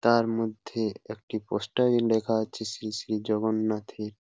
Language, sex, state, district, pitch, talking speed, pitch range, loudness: Bengali, male, West Bengal, Paschim Medinipur, 110 Hz, 155 wpm, 110-115 Hz, -28 LUFS